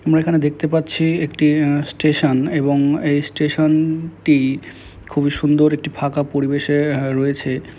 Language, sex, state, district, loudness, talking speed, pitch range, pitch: Bengali, male, West Bengal, Malda, -18 LUFS, 145 wpm, 140-155 Hz, 145 Hz